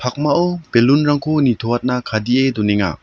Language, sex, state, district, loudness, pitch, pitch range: Garo, male, Meghalaya, South Garo Hills, -16 LUFS, 125 Hz, 115-145 Hz